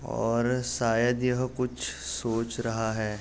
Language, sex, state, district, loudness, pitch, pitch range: Hindi, male, Uttar Pradesh, Jalaun, -28 LUFS, 115 Hz, 110-125 Hz